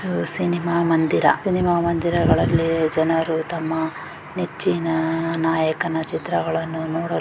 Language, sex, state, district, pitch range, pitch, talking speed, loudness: Kannada, female, Karnataka, Raichur, 160-170 Hz, 165 Hz, 90 wpm, -21 LUFS